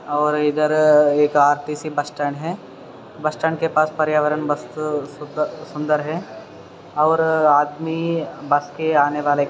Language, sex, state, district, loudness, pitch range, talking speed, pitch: Hindi, male, Maharashtra, Sindhudurg, -19 LUFS, 145-155 Hz, 135 wpm, 150 Hz